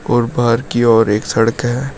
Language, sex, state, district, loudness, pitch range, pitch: Hindi, male, Uttar Pradesh, Shamli, -14 LUFS, 115-120 Hz, 120 Hz